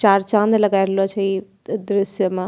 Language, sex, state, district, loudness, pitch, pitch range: Angika, female, Bihar, Bhagalpur, -19 LUFS, 195 Hz, 195-210 Hz